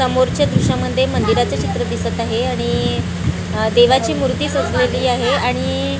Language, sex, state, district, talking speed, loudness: Marathi, female, Maharashtra, Gondia, 120 wpm, -17 LUFS